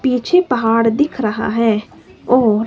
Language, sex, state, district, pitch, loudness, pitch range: Hindi, female, Himachal Pradesh, Shimla, 230 Hz, -15 LUFS, 225-255 Hz